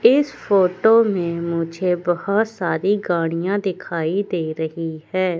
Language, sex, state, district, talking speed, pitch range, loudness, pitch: Hindi, female, Madhya Pradesh, Katni, 120 wpm, 170-200 Hz, -20 LUFS, 180 Hz